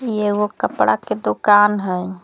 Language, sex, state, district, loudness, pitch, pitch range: Magahi, female, Jharkhand, Palamu, -17 LUFS, 205 Hz, 195-210 Hz